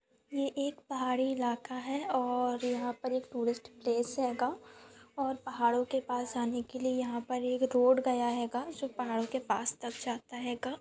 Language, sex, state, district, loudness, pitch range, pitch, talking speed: Hindi, female, Goa, North and South Goa, -33 LUFS, 240-260 Hz, 250 Hz, 170 wpm